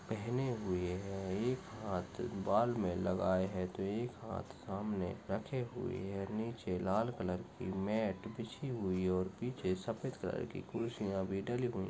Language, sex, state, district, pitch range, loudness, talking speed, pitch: Hindi, male, Maharashtra, Sindhudurg, 95-115 Hz, -39 LUFS, 160 wpm, 100 Hz